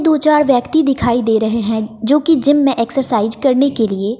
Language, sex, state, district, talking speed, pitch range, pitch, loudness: Hindi, female, Bihar, West Champaran, 215 wpm, 225-290 Hz, 255 Hz, -14 LUFS